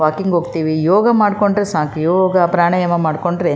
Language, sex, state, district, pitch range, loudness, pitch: Kannada, female, Karnataka, Raichur, 160-195 Hz, -15 LUFS, 175 Hz